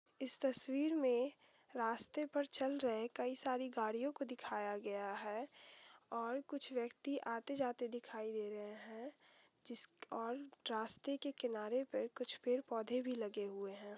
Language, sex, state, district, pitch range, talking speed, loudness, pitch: Hindi, female, Uttar Pradesh, Hamirpur, 220-270 Hz, 155 wpm, -39 LUFS, 245 Hz